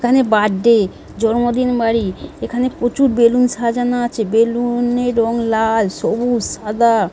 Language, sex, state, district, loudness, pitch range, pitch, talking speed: Bengali, female, West Bengal, Dakshin Dinajpur, -16 LUFS, 225-245 Hz, 235 Hz, 125 wpm